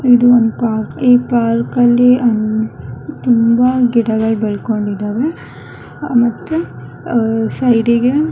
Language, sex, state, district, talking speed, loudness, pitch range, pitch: Kannada, male, Karnataka, Gulbarga, 100 wpm, -14 LUFS, 225-245 Hz, 235 Hz